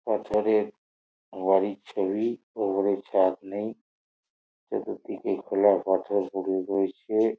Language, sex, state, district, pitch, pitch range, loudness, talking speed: Bengali, male, West Bengal, Jhargram, 100 Hz, 95-105 Hz, -27 LUFS, 90 wpm